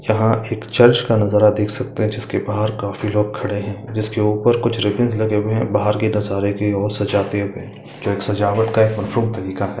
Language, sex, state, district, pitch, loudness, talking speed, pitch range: Hindi, male, Bihar, Gaya, 105 Hz, -18 LUFS, 200 wpm, 105-110 Hz